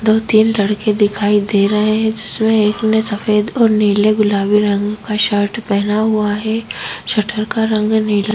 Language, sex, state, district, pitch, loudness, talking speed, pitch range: Hindi, female, Chhattisgarh, Kabirdham, 210 Hz, -15 LUFS, 180 wpm, 205-220 Hz